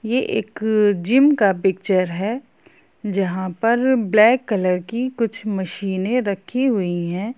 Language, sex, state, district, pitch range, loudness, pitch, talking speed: Hindi, female, Bihar, Darbhanga, 190-245 Hz, -19 LUFS, 210 Hz, 140 wpm